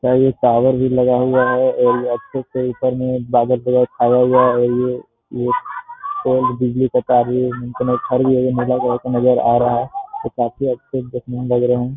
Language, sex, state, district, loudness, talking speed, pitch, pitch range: Hindi, male, Bihar, Jamui, -17 LUFS, 190 wpm, 125 Hz, 125-130 Hz